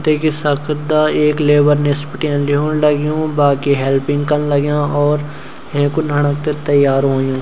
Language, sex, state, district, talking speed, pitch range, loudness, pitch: Garhwali, male, Uttarakhand, Uttarkashi, 135 wpm, 145-150 Hz, -15 LUFS, 145 Hz